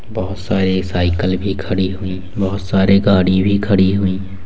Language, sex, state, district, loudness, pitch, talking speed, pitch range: Hindi, male, West Bengal, Malda, -16 LUFS, 95 Hz, 190 wpm, 95-100 Hz